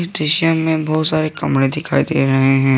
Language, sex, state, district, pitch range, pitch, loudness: Hindi, male, Jharkhand, Garhwa, 135-160 Hz, 155 Hz, -15 LUFS